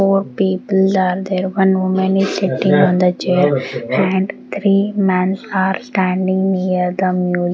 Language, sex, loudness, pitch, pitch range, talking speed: English, female, -16 LUFS, 190 Hz, 185-195 Hz, 150 wpm